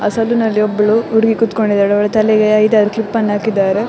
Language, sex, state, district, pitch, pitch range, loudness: Kannada, female, Karnataka, Dakshina Kannada, 215 Hz, 210-225 Hz, -13 LUFS